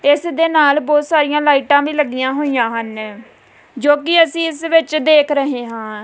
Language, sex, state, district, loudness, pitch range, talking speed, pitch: Punjabi, female, Punjab, Kapurthala, -15 LUFS, 260-310 Hz, 180 wpm, 290 Hz